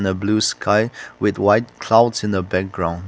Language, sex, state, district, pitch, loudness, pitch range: English, male, Nagaland, Kohima, 105 Hz, -19 LUFS, 95-110 Hz